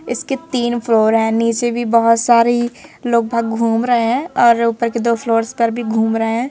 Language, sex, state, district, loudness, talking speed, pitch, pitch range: Hindi, female, Madhya Pradesh, Bhopal, -16 LUFS, 210 wpm, 235 Hz, 230-240 Hz